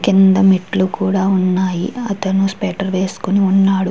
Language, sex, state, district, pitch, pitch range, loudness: Telugu, female, Andhra Pradesh, Chittoor, 190 Hz, 190-195 Hz, -15 LUFS